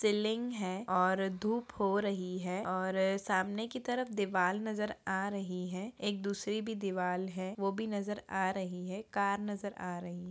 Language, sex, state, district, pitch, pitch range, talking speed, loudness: Hindi, female, Bihar, Gaya, 195 Hz, 185-210 Hz, 185 wpm, -35 LUFS